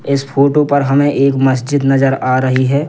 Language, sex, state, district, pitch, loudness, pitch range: Hindi, male, Madhya Pradesh, Katni, 140 Hz, -13 LUFS, 135-145 Hz